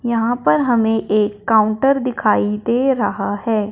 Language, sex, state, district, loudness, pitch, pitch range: Hindi, male, Punjab, Fazilka, -17 LUFS, 225 Hz, 210-245 Hz